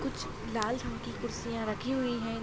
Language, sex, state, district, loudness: Hindi, female, Uttar Pradesh, Hamirpur, -35 LUFS